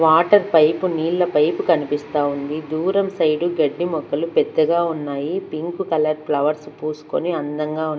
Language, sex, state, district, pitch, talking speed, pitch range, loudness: Telugu, female, Andhra Pradesh, Manyam, 160 Hz, 135 wpm, 150-175 Hz, -20 LUFS